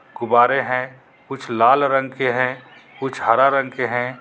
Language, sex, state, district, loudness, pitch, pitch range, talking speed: Hindi, male, Jharkhand, Garhwa, -18 LUFS, 130 Hz, 125-135 Hz, 170 wpm